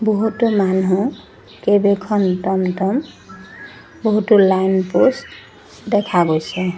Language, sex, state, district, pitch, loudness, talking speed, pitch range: Assamese, female, Assam, Sonitpur, 200 Hz, -17 LUFS, 90 wpm, 185-215 Hz